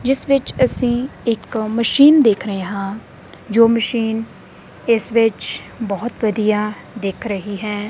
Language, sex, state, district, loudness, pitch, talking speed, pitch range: Punjabi, female, Punjab, Kapurthala, -18 LUFS, 225 Hz, 130 wpm, 210-240 Hz